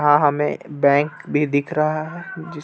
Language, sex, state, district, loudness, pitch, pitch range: Hindi, male, Jharkhand, Ranchi, -20 LUFS, 150 Hz, 145-155 Hz